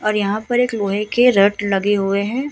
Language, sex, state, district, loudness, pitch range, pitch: Hindi, female, Uttar Pradesh, Hamirpur, -17 LUFS, 200-240 Hz, 210 Hz